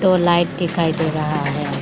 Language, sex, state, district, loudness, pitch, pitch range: Hindi, female, Arunachal Pradesh, Lower Dibang Valley, -19 LUFS, 165 Hz, 150-175 Hz